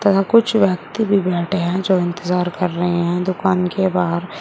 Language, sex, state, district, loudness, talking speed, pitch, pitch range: Hindi, female, Uttar Pradesh, Shamli, -18 LUFS, 190 wpm, 185 Hz, 175-195 Hz